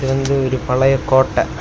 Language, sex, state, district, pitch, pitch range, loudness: Tamil, male, Tamil Nadu, Kanyakumari, 135 Hz, 130-135 Hz, -16 LUFS